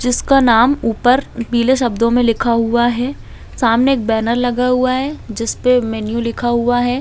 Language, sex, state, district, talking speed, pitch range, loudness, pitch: Hindi, female, Chhattisgarh, Raigarh, 180 wpm, 230-250 Hz, -15 LUFS, 240 Hz